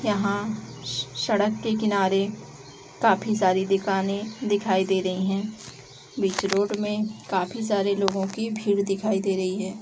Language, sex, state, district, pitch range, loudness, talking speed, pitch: Hindi, female, Chhattisgarh, Bilaspur, 190-210 Hz, -25 LUFS, 145 wpm, 195 Hz